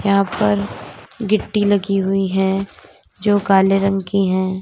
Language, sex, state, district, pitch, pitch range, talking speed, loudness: Hindi, female, Uttar Pradesh, Lalitpur, 195 Hz, 190-200 Hz, 145 wpm, -17 LUFS